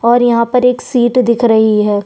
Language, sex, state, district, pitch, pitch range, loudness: Hindi, female, Chhattisgarh, Sukma, 235 Hz, 220-245 Hz, -11 LUFS